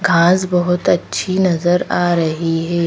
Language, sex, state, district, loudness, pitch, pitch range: Hindi, female, Madhya Pradesh, Bhopal, -16 LUFS, 175 Hz, 170-180 Hz